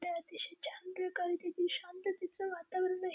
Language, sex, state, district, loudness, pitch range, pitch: Marathi, female, Maharashtra, Dhule, -36 LUFS, 350-370 Hz, 360 Hz